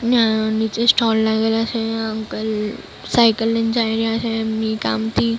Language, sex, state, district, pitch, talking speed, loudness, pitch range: Gujarati, female, Maharashtra, Mumbai Suburban, 225 Hz, 155 wpm, -19 LUFS, 220-230 Hz